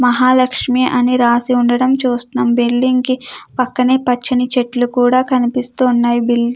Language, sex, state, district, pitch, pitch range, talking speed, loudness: Telugu, female, Andhra Pradesh, Krishna, 250 Hz, 245-255 Hz, 110 wpm, -14 LUFS